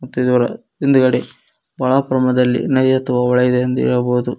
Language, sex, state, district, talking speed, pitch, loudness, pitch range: Kannada, male, Karnataka, Koppal, 95 wpm, 125 Hz, -16 LUFS, 125-130 Hz